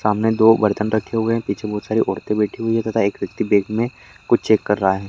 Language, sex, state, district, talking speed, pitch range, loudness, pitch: Hindi, male, Bihar, Lakhisarai, 270 wpm, 105-115 Hz, -19 LUFS, 110 Hz